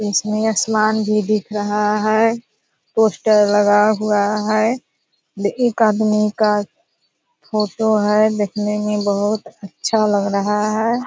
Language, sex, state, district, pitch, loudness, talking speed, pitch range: Hindi, female, Bihar, Purnia, 210 Hz, -17 LUFS, 120 wpm, 205-220 Hz